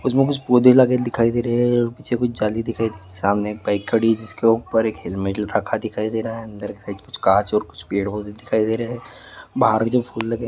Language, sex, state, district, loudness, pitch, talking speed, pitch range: Hindi, male, Andhra Pradesh, Guntur, -20 LUFS, 110 Hz, 265 wpm, 105-120 Hz